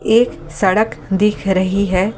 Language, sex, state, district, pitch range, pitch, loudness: Hindi, male, Delhi, New Delhi, 185-210 Hz, 195 Hz, -16 LUFS